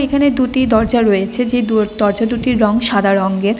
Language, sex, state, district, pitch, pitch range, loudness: Bengali, female, West Bengal, Cooch Behar, 225 Hz, 205-245 Hz, -14 LUFS